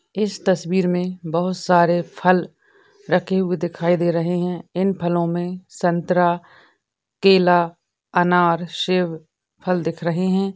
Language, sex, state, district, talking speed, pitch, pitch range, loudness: Hindi, female, Maharashtra, Chandrapur, 115 wpm, 180 Hz, 175-185 Hz, -20 LUFS